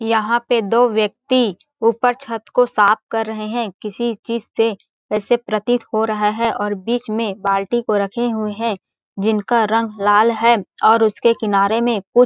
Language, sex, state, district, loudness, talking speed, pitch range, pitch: Hindi, female, Chhattisgarh, Balrampur, -18 LUFS, 180 wpm, 210-235 Hz, 225 Hz